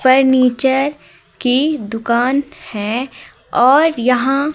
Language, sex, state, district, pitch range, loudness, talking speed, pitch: Hindi, female, Madhya Pradesh, Umaria, 245-275 Hz, -15 LUFS, 80 wpm, 260 Hz